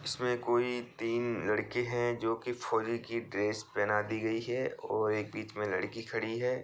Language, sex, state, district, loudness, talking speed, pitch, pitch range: Hindi, male, Bihar, Bhagalpur, -34 LUFS, 190 wpm, 115 Hz, 110-120 Hz